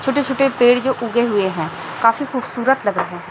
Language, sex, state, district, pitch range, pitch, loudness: Hindi, female, Chhattisgarh, Raipur, 205-270 Hz, 245 Hz, -18 LUFS